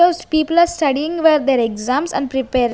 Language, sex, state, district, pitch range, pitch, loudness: English, female, Punjab, Kapurthala, 260-325 Hz, 290 Hz, -17 LUFS